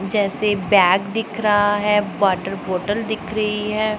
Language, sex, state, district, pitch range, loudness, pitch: Hindi, male, Punjab, Pathankot, 195-215 Hz, -19 LUFS, 210 Hz